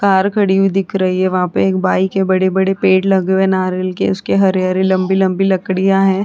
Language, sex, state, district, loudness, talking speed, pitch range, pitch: Hindi, female, Chhattisgarh, Korba, -14 LUFS, 220 wpm, 185-195 Hz, 190 Hz